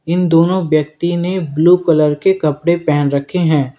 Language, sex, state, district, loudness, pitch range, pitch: Hindi, male, Uttar Pradesh, Lalitpur, -14 LUFS, 150-175 Hz, 165 Hz